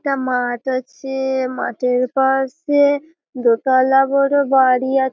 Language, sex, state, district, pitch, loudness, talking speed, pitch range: Bengali, female, West Bengal, Malda, 265 Hz, -17 LUFS, 105 wpm, 255-275 Hz